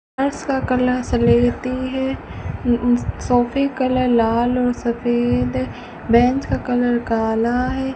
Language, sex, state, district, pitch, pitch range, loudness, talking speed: Hindi, female, Rajasthan, Bikaner, 245 Hz, 235-255 Hz, -19 LUFS, 130 wpm